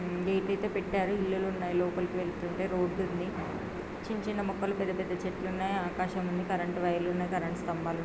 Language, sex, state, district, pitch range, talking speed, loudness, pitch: Telugu, female, Andhra Pradesh, Srikakulam, 180-190 Hz, 185 wpm, -33 LUFS, 185 Hz